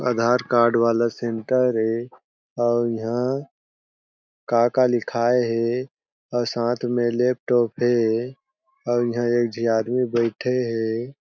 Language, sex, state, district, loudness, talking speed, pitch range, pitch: Chhattisgarhi, male, Chhattisgarh, Jashpur, -22 LUFS, 120 wpm, 115-125 Hz, 120 Hz